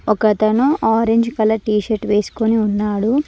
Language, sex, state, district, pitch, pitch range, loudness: Telugu, female, Telangana, Mahabubabad, 220 Hz, 210-225 Hz, -17 LUFS